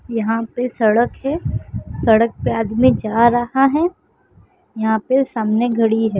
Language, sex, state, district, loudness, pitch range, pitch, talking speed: Hindi, female, Andhra Pradesh, Visakhapatnam, -17 LUFS, 220-250 Hz, 230 Hz, 145 wpm